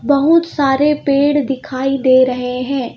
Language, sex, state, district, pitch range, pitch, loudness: Hindi, female, Madhya Pradesh, Bhopal, 255-290 Hz, 275 Hz, -14 LUFS